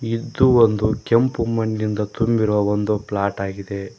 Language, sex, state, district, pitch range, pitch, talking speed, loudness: Kannada, male, Karnataka, Koppal, 105-115 Hz, 110 Hz, 120 wpm, -20 LUFS